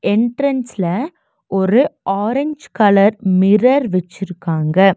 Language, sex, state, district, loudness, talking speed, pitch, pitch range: Tamil, female, Tamil Nadu, Nilgiris, -16 LUFS, 70 wpm, 205 Hz, 190-260 Hz